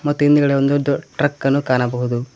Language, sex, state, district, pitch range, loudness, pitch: Kannada, male, Karnataka, Koppal, 125-145 Hz, -17 LUFS, 140 Hz